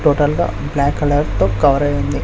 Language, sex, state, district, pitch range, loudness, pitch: Telugu, male, Andhra Pradesh, Sri Satya Sai, 100-145 Hz, -16 LUFS, 140 Hz